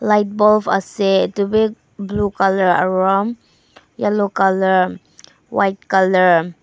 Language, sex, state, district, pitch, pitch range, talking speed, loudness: Nagamese, female, Nagaland, Dimapur, 195 Hz, 190-210 Hz, 120 wpm, -16 LUFS